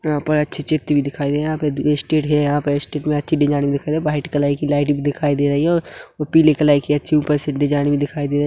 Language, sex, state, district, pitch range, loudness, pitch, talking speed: Hindi, male, Chhattisgarh, Rajnandgaon, 145-150 Hz, -18 LUFS, 145 Hz, 310 wpm